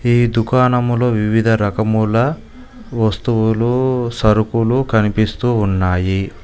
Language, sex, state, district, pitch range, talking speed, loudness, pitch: Telugu, male, Telangana, Mahabubabad, 110-120 Hz, 75 wpm, -16 LUFS, 115 Hz